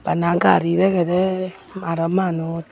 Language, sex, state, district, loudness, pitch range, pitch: Chakma, female, Tripura, Unakoti, -19 LUFS, 165-190 Hz, 175 Hz